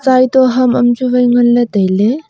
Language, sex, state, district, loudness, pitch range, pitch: Wancho, female, Arunachal Pradesh, Longding, -11 LUFS, 240-255 Hz, 250 Hz